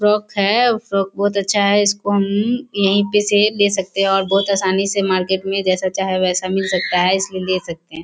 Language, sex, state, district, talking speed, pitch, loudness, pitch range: Hindi, female, Bihar, Sitamarhi, 230 wpm, 195 Hz, -17 LUFS, 190-205 Hz